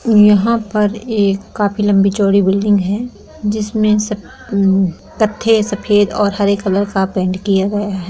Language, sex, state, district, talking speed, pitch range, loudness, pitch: Hindi, female, Jharkhand, Sahebganj, 165 wpm, 195-210 Hz, -15 LUFS, 205 Hz